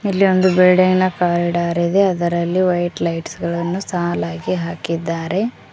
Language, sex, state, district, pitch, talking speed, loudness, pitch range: Kannada, female, Karnataka, Koppal, 175 Hz, 125 wpm, -18 LUFS, 170-185 Hz